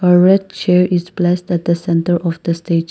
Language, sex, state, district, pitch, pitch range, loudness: English, female, Nagaland, Kohima, 175 Hz, 170-180 Hz, -15 LUFS